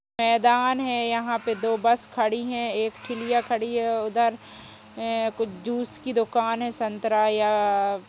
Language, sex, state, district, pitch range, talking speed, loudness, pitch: Hindi, female, Uttar Pradesh, Jalaun, 220-235 Hz, 165 wpm, -25 LUFS, 230 Hz